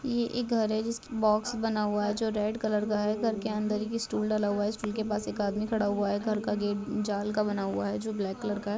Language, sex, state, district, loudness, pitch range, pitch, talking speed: Hindi, female, Uttar Pradesh, Budaun, -30 LUFS, 205-220 Hz, 210 Hz, 285 wpm